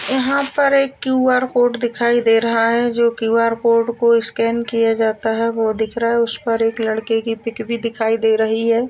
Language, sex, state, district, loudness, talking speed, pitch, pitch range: Hindi, female, Uttar Pradesh, Jalaun, -17 LUFS, 210 wpm, 230 Hz, 225-240 Hz